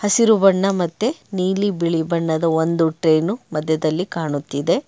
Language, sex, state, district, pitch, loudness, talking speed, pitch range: Kannada, male, Karnataka, Bangalore, 170 Hz, -19 LUFS, 125 wpm, 160-195 Hz